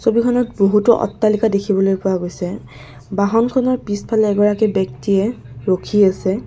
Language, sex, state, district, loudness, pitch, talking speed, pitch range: Assamese, female, Assam, Kamrup Metropolitan, -17 LUFS, 200 Hz, 110 wpm, 190-220 Hz